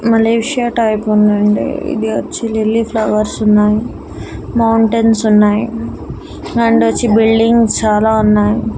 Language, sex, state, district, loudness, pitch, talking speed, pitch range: Telugu, female, Andhra Pradesh, Annamaya, -13 LUFS, 225 Hz, 105 wpm, 215-230 Hz